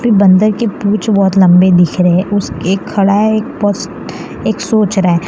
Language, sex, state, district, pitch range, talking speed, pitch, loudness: Hindi, female, Gujarat, Valsad, 185-215 Hz, 180 wpm, 200 Hz, -11 LUFS